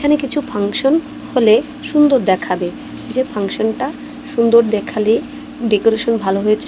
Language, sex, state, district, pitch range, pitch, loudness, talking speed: Bengali, female, Odisha, Malkangiri, 215-280 Hz, 240 Hz, -16 LUFS, 125 wpm